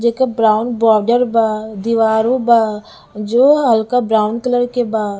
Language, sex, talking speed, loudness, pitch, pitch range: Bhojpuri, female, 140 wpm, -14 LUFS, 230 Hz, 215-245 Hz